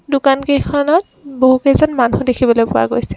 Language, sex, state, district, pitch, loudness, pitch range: Assamese, female, Assam, Kamrup Metropolitan, 275 Hz, -14 LUFS, 255-285 Hz